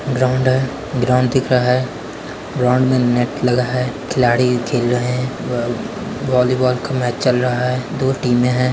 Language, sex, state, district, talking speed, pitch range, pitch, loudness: Hindi, male, West Bengal, Purulia, 180 wpm, 125-130 Hz, 125 Hz, -17 LUFS